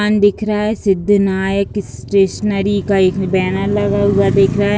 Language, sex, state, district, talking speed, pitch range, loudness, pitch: Hindi, female, Bihar, East Champaran, 190 wpm, 195-205 Hz, -15 LUFS, 200 Hz